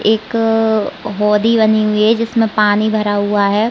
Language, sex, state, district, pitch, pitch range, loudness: Hindi, female, Chhattisgarh, Raigarh, 215 Hz, 210-225 Hz, -14 LUFS